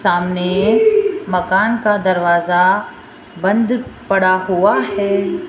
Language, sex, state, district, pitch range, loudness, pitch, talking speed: Hindi, female, Rajasthan, Jaipur, 180-215 Hz, -15 LUFS, 190 Hz, 85 wpm